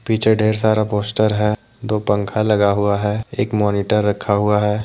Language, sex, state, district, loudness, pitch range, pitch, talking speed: Hindi, male, Jharkhand, Deoghar, -18 LUFS, 105-110 Hz, 105 Hz, 185 wpm